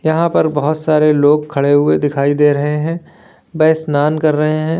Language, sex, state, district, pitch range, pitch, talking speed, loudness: Hindi, male, Uttar Pradesh, Lalitpur, 145-155 Hz, 150 Hz, 200 wpm, -14 LUFS